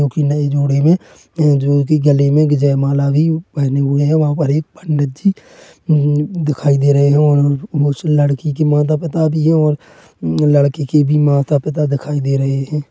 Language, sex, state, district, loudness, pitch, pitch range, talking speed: Hindi, male, Chhattisgarh, Korba, -14 LUFS, 145 Hz, 140-155 Hz, 180 wpm